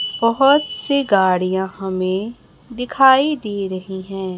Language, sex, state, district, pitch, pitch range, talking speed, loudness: Hindi, male, Chhattisgarh, Raipur, 200 Hz, 190-265 Hz, 110 wpm, -18 LUFS